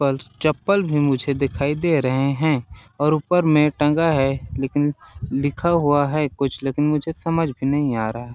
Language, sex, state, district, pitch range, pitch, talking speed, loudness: Hindi, male, Chhattisgarh, Balrampur, 135-155 Hz, 145 Hz, 180 wpm, -20 LUFS